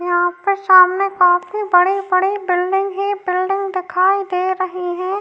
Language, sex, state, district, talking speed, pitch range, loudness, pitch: Hindi, female, Uttar Pradesh, Jyotiba Phule Nagar, 140 wpm, 360-390 Hz, -16 LUFS, 370 Hz